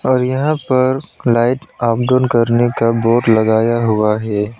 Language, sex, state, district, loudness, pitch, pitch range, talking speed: Hindi, male, West Bengal, Alipurduar, -15 LUFS, 120 Hz, 115-130 Hz, 155 wpm